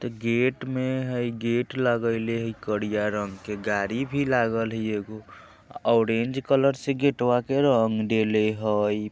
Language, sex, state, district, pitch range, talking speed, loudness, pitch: Bajjika, male, Bihar, Vaishali, 110-130 Hz, 150 wpm, -25 LUFS, 115 Hz